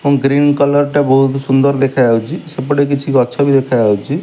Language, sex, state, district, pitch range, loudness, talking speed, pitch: Odia, male, Odisha, Malkangiri, 130-145 Hz, -13 LUFS, 155 wpm, 140 Hz